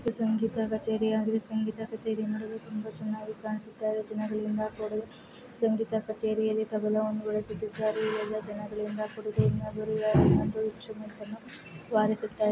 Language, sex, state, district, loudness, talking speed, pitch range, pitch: Kannada, female, Karnataka, Mysore, -31 LUFS, 105 wpm, 215-220 Hz, 215 Hz